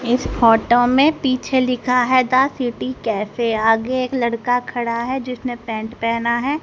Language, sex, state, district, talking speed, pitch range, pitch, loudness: Hindi, female, Haryana, Charkhi Dadri, 165 wpm, 235-255 Hz, 245 Hz, -18 LUFS